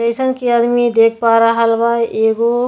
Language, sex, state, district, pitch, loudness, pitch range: Bhojpuri, female, Uttar Pradesh, Deoria, 230 Hz, -13 LUFS, 230-240 Hz